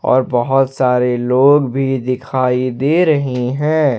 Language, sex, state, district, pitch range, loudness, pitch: Hindi, male, Jharkhand, Ranchi, 125-140 Hz, -15 LUFS, 130 Hz